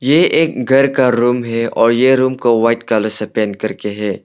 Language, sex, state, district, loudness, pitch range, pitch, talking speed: Hindi, male, Arunachal Pradesh, Longding, -14 LUFS, 110-130 Hz, 120 Hz, 225 wpm